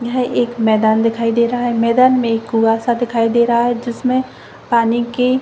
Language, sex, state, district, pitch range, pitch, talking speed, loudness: Hindi, female, Jharkhand, Jamtara, 230-245 Hz, 235 Hz, 200 wpm, -15 LUFS